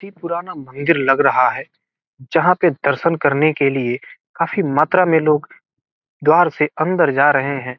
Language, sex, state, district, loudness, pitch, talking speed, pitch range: Hindi, male, Bihar, Gopalganj, -17 LUFS, 155 Hz, 170 wpm, 140-170 Hz